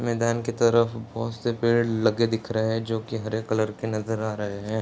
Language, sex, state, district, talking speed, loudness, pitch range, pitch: Hindi, male, Bihar, Bhagalpur, 225 wpm, -25 LUFS, 110-115 Hz, 115 Hz